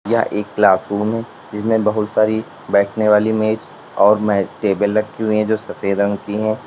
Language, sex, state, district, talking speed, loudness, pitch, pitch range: Hindi, male, Uttar Pradesh, Lalitpur, 170 wpm, -17 LUFS, 105 Hz, 100-110 Hz